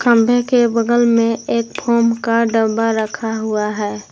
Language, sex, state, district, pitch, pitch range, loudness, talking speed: Hindi, female, Jharkhand, Garhwa, 230 Hz, 220-235 Hz, -16 LUFS, 160 wpm